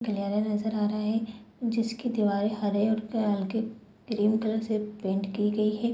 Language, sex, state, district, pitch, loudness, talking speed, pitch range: Hindi, female, Bihar, Sitamarhi, 215 Hz, -29 LUFS, 170 wpm, 210-220 Hz